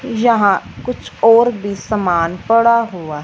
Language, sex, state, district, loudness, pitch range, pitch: Hindi, female, Punjab, Fazilka, -14 LUFS, 180-235 Hz, 215 Hz